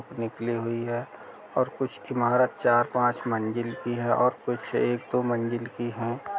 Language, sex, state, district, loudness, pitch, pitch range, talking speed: Hindi, male, Uttar Pradesh, Jalaun, -27 LUFS, 120 Hz, 115-120 Hz, 160 wpm